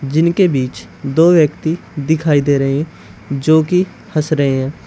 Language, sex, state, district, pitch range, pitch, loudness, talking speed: Hindi, male, Uttar Pradesh, Shamli, 140-165 Hz, 155 Hz, -15 LUFS, 160 wpm